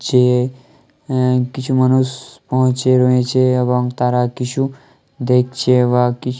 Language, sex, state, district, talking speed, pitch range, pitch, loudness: Bengali, male, Jharkhand, Jamtara, 120 wpm, 125-130 Hz, 125 Hz, -16 LUFS